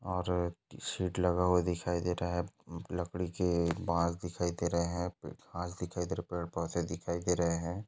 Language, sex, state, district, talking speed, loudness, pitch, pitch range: Hindi, male, Maharashtra, Aurangabad, 200 wpm, -34 LUFS, 85 Hz, 85-90 Hz